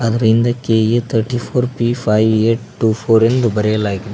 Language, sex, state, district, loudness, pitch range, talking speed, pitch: Kannada, male, Karnataka, Koppal, -15 LUFS, 110-120 Hz, 175 wpm, 115 Hz